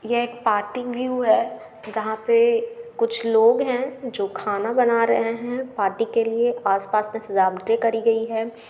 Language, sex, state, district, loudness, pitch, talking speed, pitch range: Hindi, female, Bihar, Gaya, -22 LUFS, 230 Hz, 170 wpm, 220-250 Hz